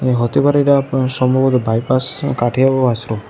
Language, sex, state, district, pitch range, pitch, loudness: Bengali, male, Tripura, West Tripura, 120-135 Hz, 130 Hz, -15 LUFS